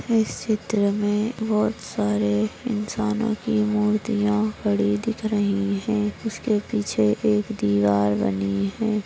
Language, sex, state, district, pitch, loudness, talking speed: Hindi, female, Maharashtra, Nagpur, 210 Hz, -23 LUFS, 110 wpm